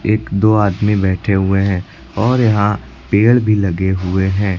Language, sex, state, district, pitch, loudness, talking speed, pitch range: Hindi, male, Uttar Pradesh, Lucknow, 100 Hz, -15 LUFS, 170 wpm, 95-110 Hz